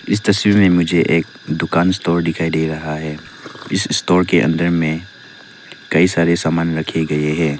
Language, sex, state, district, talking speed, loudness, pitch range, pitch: Hindi, male, Arunachal Pradesh, Lower Dibang Valley, 175 wpm, -16 LUFS, 80-90 Hz, 85 Hz